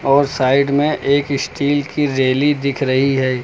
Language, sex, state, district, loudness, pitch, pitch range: Hindi, male, Uttar Pradesh, Lucknow, -16 LUFS, 140 Hz, 135-145 Hz